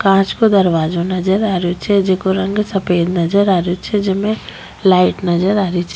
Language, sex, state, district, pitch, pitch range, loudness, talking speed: Rajasthani, female, Rajasthan, Nagaur, 190 Hz, 180-200 Hz, -15 LUFS, 200 wpm